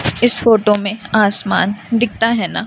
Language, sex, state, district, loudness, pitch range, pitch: Hindi, female, Madhya Pradesh, Umaria, -14 LUFS, 205-230 Hz, 215 Hz